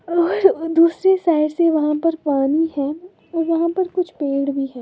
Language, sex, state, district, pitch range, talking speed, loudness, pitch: Hindi, female, Uttar Pradesh, Lalitpur, 300-345 Hz, 185 wpm, -18 LUFS, 330 Hz